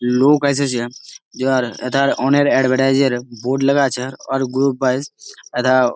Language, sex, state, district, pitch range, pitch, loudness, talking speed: Bengali, male, West Bengal, Malda, 125-140 Hz, 130 Hz, -17 LUFS, 140 wpm